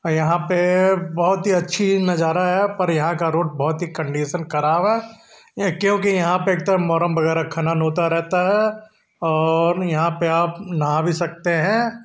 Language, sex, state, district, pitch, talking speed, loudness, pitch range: Hindi, male, Uttar Pradesh, Hamirpur, 175 Hz, 175 wpm, -19 LUFS, 165-190 Hz